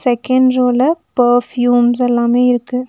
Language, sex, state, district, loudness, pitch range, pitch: Tamil, female, Tamil Nadu, Nilgiris, -13 LUFS, 245-255 Hz, 245 Hz